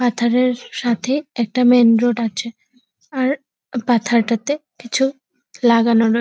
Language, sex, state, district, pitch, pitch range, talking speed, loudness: Bengali, female, West Bengal, Purulia, 240 Hz, 235-260 Hz, 115 wpm, -18 LUFS